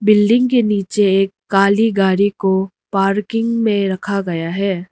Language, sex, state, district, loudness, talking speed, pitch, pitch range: Hindi, female, Arunachal Pradesh, Lower Dibang Valley, -16 LUFS, 145 wpm, 200 Hz, 195-210 Hz